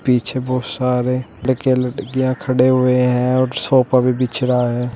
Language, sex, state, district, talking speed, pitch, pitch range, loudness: Hindi, male, Uttar Pradesh, Shamli, 170 wpm, 125 Hz, 125-130 Hz, -17 LUFS